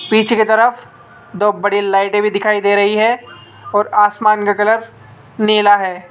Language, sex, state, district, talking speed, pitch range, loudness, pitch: Hindi, male, Rajasthan, Jaipur, 165 wpm, 205-220 Hz, -14 LUFS, 210 Hz